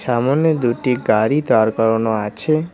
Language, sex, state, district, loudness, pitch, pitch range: Bengali, male, West Bengal, Cooch Behar, -17 LUFS, 120 Hz, 110-145 Hz